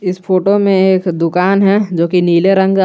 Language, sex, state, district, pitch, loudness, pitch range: Hindi, male, Jharkhand, Garhwa, 190 Hz, -12 LUFS, 180-195 Hz